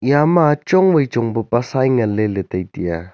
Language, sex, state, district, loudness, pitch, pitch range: Wancho, male, Arunachal Pradesh, Longding, -17 LUFS, 120 Hz, 105-145 Hz